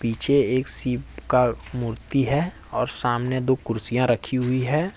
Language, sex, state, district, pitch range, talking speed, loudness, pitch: Hindi, male, Jharkhand, Ranchi, 120-135 Hz, 170 wpm, -19 LUFS, 125 Hz